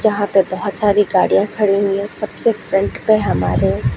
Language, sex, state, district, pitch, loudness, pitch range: Hindi, female, Uttar Pradesh, Lucknow, 205 Hz, -16 LUFS, 195-210 Hz